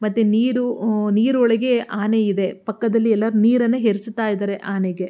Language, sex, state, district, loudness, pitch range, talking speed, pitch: Kannada, female, Karnataka, Mysore, -19 LUFS, 205-235 Hz, 140 wpm, 220 Hz